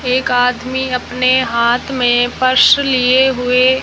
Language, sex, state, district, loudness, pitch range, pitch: Hindi, female, Rajasthan, Jaisalmer, -13 LUFS, 245-260 Hz, 255 Hz